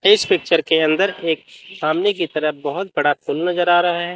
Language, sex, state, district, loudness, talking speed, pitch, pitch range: Hindi, male, Chandigarh, Chandigarh, -18 LUFS, 200 wpm, 170 Hz, 155-180 Hz